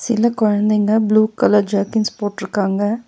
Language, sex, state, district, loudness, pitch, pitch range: Tamil, female, Tamil Nadu, Nilgiris, -17 LUFS, 210 Hz, 205-220 Hz